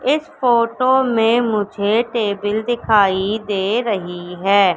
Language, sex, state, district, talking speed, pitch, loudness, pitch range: Hindi, female, Madhya Pradesh, Katni, 115 wpm, 215 Hz, -17 LUFS, 200-235 Hz